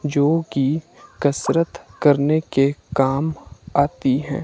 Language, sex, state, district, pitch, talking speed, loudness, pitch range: Hindi, male, Himachal Pradesh, Shimla, 145 Hz, 110 wpm, -20 LUFS, 140-160 Hz